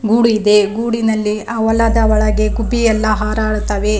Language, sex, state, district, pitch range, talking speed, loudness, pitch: Kannada, female, Karnataka, Raichur, 215-225 Hz, 120 wpm, -15 LUFS, 215 Hz